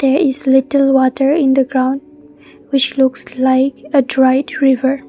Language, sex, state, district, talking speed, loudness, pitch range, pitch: English, female, Mizoram, Aizawl, 155 wpm, -14 LUFS, 265-275 Hz, 270 Hz